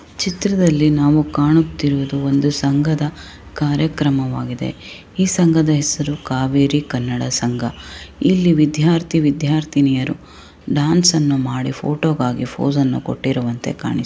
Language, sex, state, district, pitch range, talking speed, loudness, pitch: Kannada, female, Karnataka, Raichur, 130-155 Hz, 110 wpm, -17 LUFS, 145 Hz